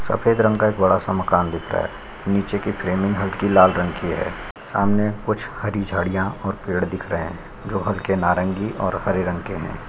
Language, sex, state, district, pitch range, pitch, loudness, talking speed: Hindi, male, Chhattisgarh, Sukma, 95-105 Hz, 95 Hz, -21 LUFS, 220 wpm